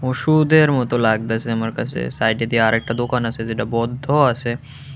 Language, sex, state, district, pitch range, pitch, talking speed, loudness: Bengali, male, Tripura, West Tripura, 115-130 Hz, 120 Hz, 155 wpm, -19 LUFS